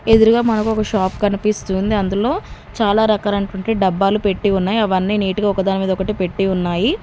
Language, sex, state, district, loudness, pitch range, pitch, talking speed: Telugu, female, Telangana, Mahabubabad, -17 LUFS, 190-215 Hz, 205 Hz, 170 wpm